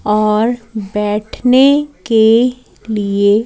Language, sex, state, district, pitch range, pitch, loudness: Hindi, female, Chandigarh, Chandigarh, 210-250 Hz, 220 Hz, -14 LUFS